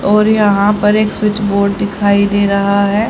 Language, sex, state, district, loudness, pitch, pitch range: Hindi, male, Haryana, Rohtak, -12 LUFS, 205 Hz, 200-210 Hz